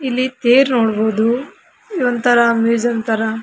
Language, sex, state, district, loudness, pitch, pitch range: Kannada, female, Karnataka, Raichur, -15 LUFS, 240 Hz, 225-255 Hz